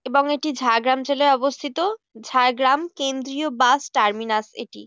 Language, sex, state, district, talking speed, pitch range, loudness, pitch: Bengali, female, West Bengal, Jhargram, 125 wpm, 245-285 Hz, -21 LUFS, 265 Hz